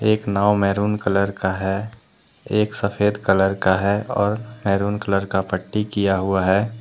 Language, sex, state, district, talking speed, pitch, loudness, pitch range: Hindi, male, Jharkhand, Deoghar, 165 wpm, 100 Hz, -20 LUFS, 95-105 Hz